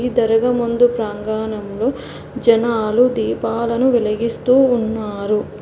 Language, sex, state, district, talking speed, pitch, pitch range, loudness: Telugu, female, Telangana, Hyderabad, 75 wpm, 230 Hz, 215-245 Hz, -17 LUFS